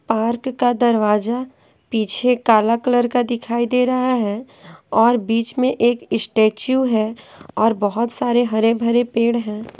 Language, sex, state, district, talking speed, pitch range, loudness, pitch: Hindi, female, Bihar, Patna, 145 wpm, 225-245 Hz, -18 LUFS, 235 Hz